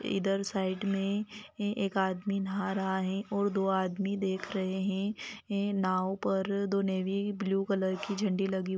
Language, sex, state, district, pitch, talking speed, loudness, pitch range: Hindi, female, Chhattisgarh, Bilaspur, 195 Hz, 165 wpm, -32 LUFS, 190-200 Hz